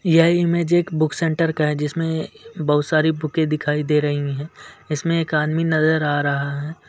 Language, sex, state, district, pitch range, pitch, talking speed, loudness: Hindi, male, Bihar, Gaya, 150-165 Hz, 155 Hz, 190 wpm, -20 LUFS